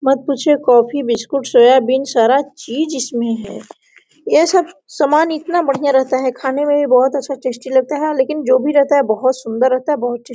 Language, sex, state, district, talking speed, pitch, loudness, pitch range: Hindi, female, Jharkhand, Sahebganj, 205 wpm, 270 Hz, -15 LUFS, 255-290 Hz